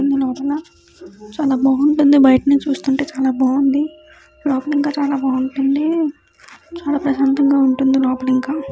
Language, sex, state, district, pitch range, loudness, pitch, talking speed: Telugu, female, Andhra Pradesh, Krishna, 265-290 Hz, -16 LUFS, 275 Hz, 115 wpm